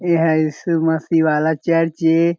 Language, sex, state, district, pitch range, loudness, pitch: Chhattisgarhi, male, Chhattisgarh, Jashpur, 160-165 Hz, -17 LUFS, 165 Hz